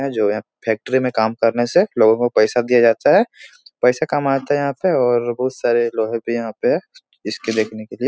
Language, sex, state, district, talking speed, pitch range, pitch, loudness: Hindi, male, Bihar, Jahanabad, 230 wpm, 110-130 Hz, 120 Hz, -18 LUFS